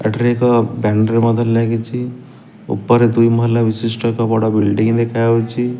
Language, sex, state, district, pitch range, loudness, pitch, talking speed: Odia, male, Odisha, Nuapada, 115-120 Hz, -15 LUFS, 115 Hz, 135 wpm